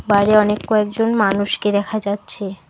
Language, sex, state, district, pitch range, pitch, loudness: Bengali, female, West Bengal, Alipurduar, 200-215 Hz, 205 Hz, -17 LUFS